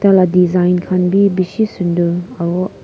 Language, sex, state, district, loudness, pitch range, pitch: Nagamese, female, Nagaland, Kohima, -14 LUFS, 180-190 Hz, 180 Hz